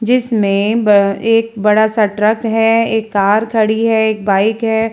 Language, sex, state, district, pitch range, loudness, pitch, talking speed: Hindi, female, Uttar Pradesh, Jalaun, 210-225 Hz, -13 LUFS, 220 Hz, 145 wpm